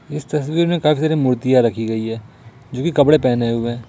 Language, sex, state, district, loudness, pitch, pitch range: Hindi, male, Jharkhand, Ranchi, -17 LUFS, 130 Hz, 115-150 Hz